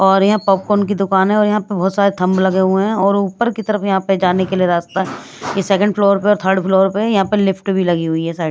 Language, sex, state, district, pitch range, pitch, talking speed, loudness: Hindi, female, Punjab, Pathankot, 190-205 Hz, 195 Hz, 295 wpm, -15 LUFS